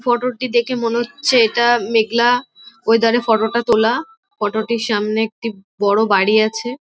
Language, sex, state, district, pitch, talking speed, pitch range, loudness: Bengali, female, West Bengal, Dakshin Dinajpur, 230 Hz, 130 wpm, 220-240 Hz, -17 LUFS